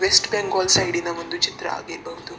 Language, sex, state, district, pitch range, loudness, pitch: Kannada, female, Karnataka, Dakshina Kannada, 175-210 Hz, -21 LUFS, 190 Hz